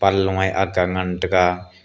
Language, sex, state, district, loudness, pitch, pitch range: Wancho, male, Arunachal Pradesh, Longding, -20 LUFS, 95 Hz, 90-95 Hz